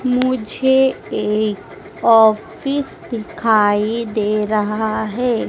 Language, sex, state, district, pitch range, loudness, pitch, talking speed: Hindi, female, Madhya Pradesh, Dhar, 215-250 Hz, -17 LUFS, 220 Hz, 75 wpm